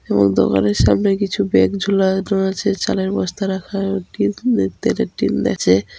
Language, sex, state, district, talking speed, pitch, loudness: Bengali, female, West Bengal, Dakshin Dinajpur, 150 wpm, 190 Hz, -18 LUFS